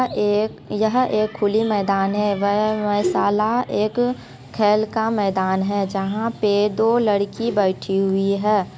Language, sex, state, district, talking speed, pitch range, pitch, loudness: Maithili, female, Bihar, Supaul, 135 wpm, 200-220 Hz, 210 Hz, -20 LUFS